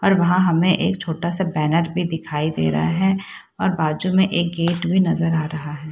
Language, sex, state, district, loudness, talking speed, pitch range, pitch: Hindi, female, Bihar, Saharsa, -20 LUFS, 215 wpm, 155-185 Hz, 170 Hz